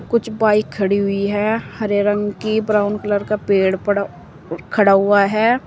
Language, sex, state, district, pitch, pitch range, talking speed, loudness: Hindi, female, Uttar Pradesh, Saharanpur, 205 Hz, 200-215 Hz, 170 wpm, -17 LUFS